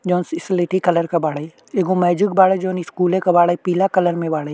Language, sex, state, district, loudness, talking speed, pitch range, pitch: Bhojpuri, male, Uttar Pradesh, Ghazipur, -18 LUFS, 210 wpm, 170-185 Hz, 180 Hz